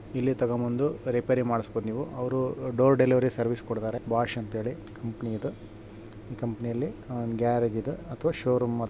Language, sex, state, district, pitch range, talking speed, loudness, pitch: Kannada, male, Karnataka, Shimoga, 115-125 Hz, 170 wpm, -28 LUFS, 120 Hz